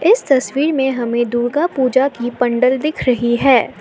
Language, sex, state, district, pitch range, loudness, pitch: Hindi, female, Assam, Sonitpur, 240-275 Hz, -16 LUFS, 255 Hz